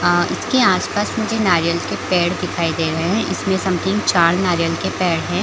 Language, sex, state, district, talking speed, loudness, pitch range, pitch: Hindi, female, Chhattisgarh, Bilaspur, 200 wpm, -18 LUFS, 170-205 Hz, 180 Hz